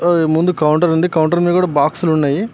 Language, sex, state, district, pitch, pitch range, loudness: Telugu, male, Telangana, Mahabubabad, 165 Hz, 155-175 Hz, -15 LUFS